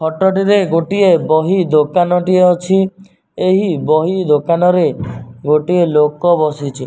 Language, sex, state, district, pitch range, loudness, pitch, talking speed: Odia, male, Odisha, Nuapada, 155-190 Hz, -13 LUFS, 175 Hz, 140 wpm